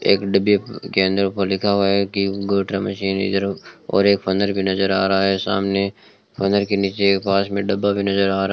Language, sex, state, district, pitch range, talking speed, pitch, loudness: Hindi, male, Rajasthan, Bikaner, 95-100 Hz, 225 wpm, 100 Hz, -19 LUFS